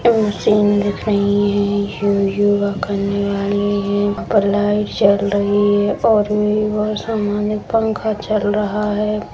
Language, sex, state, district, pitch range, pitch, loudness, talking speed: Hindi, female, Bihar, Begusarai, 200-210 Hz, 205 Hz, -17 LUFS, 150 wpm